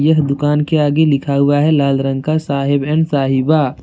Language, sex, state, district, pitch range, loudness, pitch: Hindi, male, Jharkhand, Deoghar, 140-155 Hz, -14 LUFS, 145 Hz